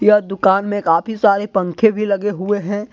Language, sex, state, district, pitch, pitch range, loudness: Hindi, male, Jharkhand, Deoghar, 205 Hz, 195-210 Hz, -17 LUFS